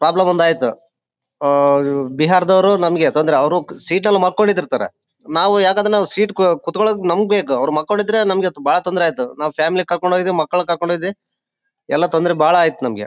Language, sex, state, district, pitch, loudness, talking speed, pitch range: Kannada, male, Karnataka, Bellary, 180 Hz, -16 LUFS, 145 wpm, 160-200 Hz